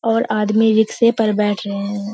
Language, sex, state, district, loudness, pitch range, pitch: Hindi, female, Bihar, Purnia, -17 LUFS, 205-225 Hz, 215 Hz